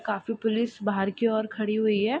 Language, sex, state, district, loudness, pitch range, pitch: Hindi, female, Bihar, Darbhanga, -27 LUFS, 210-225 Hz, 220 Hz